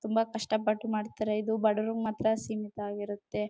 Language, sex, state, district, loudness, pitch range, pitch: Kannada, female, Karnataka, Chamarajanagar, -31 LUFS, 210-220 Hz, 215 Hz